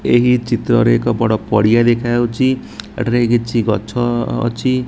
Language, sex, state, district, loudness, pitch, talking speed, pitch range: Odia, male, Odisha, Nuapada, -15 LUFS, 120 Hz, 135 wpm, 115-120 Hz